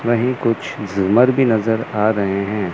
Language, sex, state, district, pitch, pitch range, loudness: Hindi, male, Chandigarh, Chandigarh, 110 Hz, 105-120 Hz, -17 LUFS